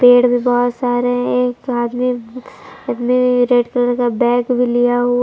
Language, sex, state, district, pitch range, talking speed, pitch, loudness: Hindi, female, Jharkhand, Palamu, 245-250 Hz, 170 wpm, 245 Hz, -16 LUFS